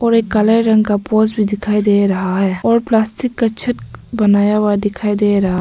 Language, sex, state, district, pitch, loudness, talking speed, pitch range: Hindi, female, Arunachal Pradesh, Papum Pare, 210 Hz, -15 LUFS, 225 wpm, 205-225 Hz